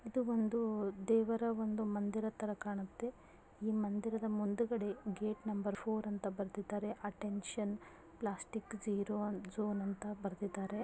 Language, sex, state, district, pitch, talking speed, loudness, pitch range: Kannada, female, Karnataka, Bijapur, 210 Hz, 115 wpm, -39 LUFS, 205-220 Hz